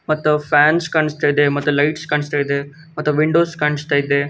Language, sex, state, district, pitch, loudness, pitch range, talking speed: Kannada, male, Karnataka, Gulbarga, 150 Hz, -17 LUFS, 145-155 Hz, 180 wpm